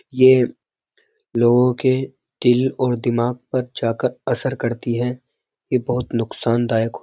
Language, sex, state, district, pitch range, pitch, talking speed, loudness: Hindi, male, Uttar Pradesh, Jyotiba Phule Nagar, 120-130 Hz, 125 Hz, 130 wpm, -20 LUFS